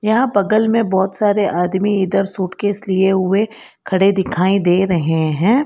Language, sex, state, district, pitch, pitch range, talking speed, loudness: Hindi, female, Karnataka, Bangalore, 195 Hz, 185-210 Hz, 170 wpm, -16 LUFS